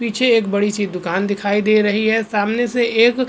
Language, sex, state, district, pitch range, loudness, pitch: Hindi, male, Goa, North and South Goa, 205-235 Hz, -17 LUFS, 215 Hz